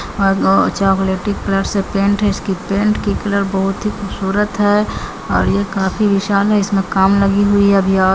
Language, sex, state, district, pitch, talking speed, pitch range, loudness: Maithili, female, Bihar, Samastipur, 200 Hz, 200 wpm, 195-205 Hz, -15 LUFS